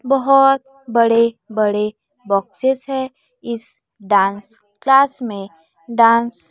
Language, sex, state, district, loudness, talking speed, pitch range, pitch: Hindi, female, Chhattisgarh, Raipur, -17 LUFS, 100 wpm, 205-265 Hz, 230 Hz